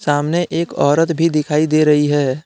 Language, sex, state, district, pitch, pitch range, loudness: Hindi, male, Jharkhand, Deoghar, 150 Hz, 145-165 Hz, -15 LUFS